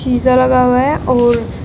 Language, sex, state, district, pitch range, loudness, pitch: Hindi, female, Uttar Pradesh, Shamli, 250-255 Hz, -12 LUFS, 255 Hz